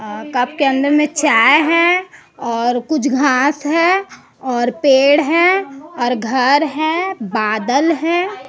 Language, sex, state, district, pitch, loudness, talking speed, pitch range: Hindi, female, Chhattisgarh, Raipur, 290 Hz, -15 LUFS, 125 wpm, 250-330 Hz